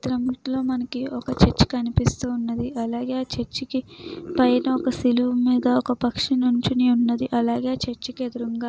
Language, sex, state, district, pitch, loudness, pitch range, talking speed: Telugu, female, Andhra Pradesh, Krishna, 250 Hz, -23 LUFS, 240-260 Hz, 115 wpm